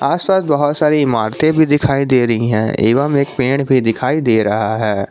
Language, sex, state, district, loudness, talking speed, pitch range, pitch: Hindi, male, Jharkhand, Garhwa, -14 LUFS, 210 wpm, 110-145 Hz, 135 Hz